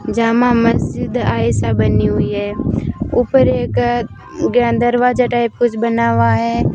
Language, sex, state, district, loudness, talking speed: Hindi, female, Rajasthan, Bikaner, -15 LUFS, 135 wpm